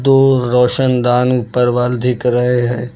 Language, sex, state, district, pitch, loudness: Hindi, male, Uttar Pradesh, Lucknow, 125 Hz, -14 LUFS